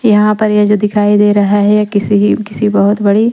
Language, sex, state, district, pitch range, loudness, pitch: Hindi, female, Bihar, Patna, 205-210 Hz, -11 LUFS, 210 Hz